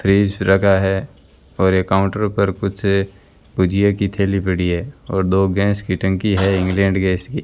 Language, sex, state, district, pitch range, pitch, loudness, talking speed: Hindi, male, Rajasthan, Bikaner, 95-100 Hz, 95 Hz, -18 LUFS, 175 wpm